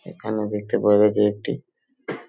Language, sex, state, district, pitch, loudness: Bengali, male, West Bengal, Paschim Medinipur, 105 Hz, -21 LUFS